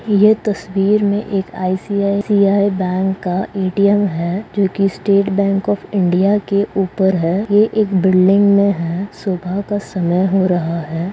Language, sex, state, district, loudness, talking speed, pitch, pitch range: Hindi, female, Maharashtra, Pune, -16 LUFS, 160 wpm, 195 Hz, 185-205 Hz